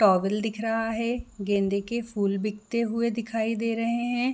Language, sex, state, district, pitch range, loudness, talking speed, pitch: Hindi, female, Chhattisgarh, Raigarh, 205-235 Hz, -27 LUFS, 180 wpm, 225 Hz